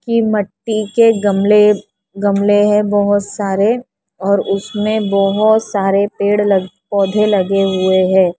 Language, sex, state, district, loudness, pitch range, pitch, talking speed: Hindi, female, Maharashtra, Mumbai Suburban, -14 LUFS, 195-210 Hz, 205 Hz, 130 wpm